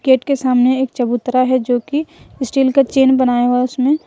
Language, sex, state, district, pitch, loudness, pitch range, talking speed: Hindi, female, Jharkhand, Ranchi, 255 Hz, -15 LUFS, 250-270 Hz, 220 wpm